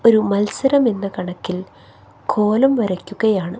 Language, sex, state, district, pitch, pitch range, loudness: Malayalam, female, Kerala, Kasaragod, 200 Hz, 180-220 Hz, -19 LUFS